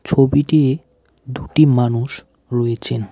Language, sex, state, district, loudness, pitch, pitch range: Bengali, male, West Bengal, Alipurduar, -17 LUFS, 130 Hz, 120-140 Hz